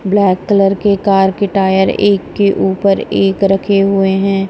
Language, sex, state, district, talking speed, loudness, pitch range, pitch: Hindi, female, Punjab, Kapurthala, 175 wpm, -12 LUFS, 190-200 Hz, 195 Hz